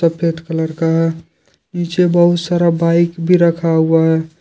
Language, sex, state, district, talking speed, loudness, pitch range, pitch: Hindi, male, Jharkhand, Deoghar, 150 wpm, -15 LUFS, 165-175 Hz, 165 Hz